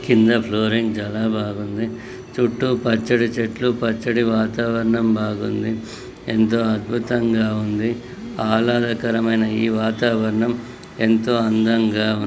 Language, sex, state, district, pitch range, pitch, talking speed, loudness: Telugu, male, Andhra Pradesh, Srikakulam, 110-120 Hz, 115 Hz, 95 wpm, -20 LUFS